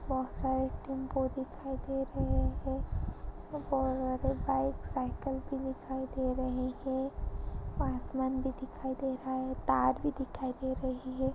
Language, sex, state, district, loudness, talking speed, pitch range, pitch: Hindi, female, Bihar, Kishanganj, -34 LUFS, 145 wpm, 260-265 Hz, 265 Hz